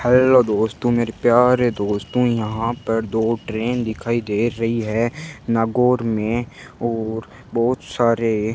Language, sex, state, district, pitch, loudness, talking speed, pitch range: Hindi, male, Rajasthan, Bikaner, 115 Hz, -20 LUFS, 135 wpm, 110-120 Hz